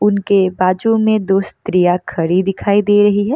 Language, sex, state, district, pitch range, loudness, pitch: Hindi, female, Bihar, Samastipur, 185-205 Hz, -14 LUFS, 200 Hz